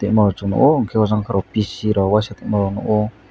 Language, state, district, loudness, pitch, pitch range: Kokborok, Tripura, West Tripura, -18 LUFS, 105 Hz, 100-105 Hz